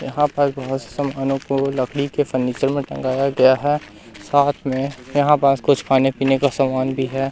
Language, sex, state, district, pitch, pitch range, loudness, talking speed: Hindi, male, Madhya Pradesh, Katni, 135 Hz, 130-140 Hz, -19 LUFS, 190 wpm